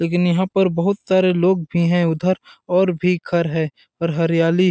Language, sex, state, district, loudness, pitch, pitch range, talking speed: Hindi, male, Chhattisgarh, Balrampur, -19 LUFS, 175 Hz, 170-185 Hz, 190 wpm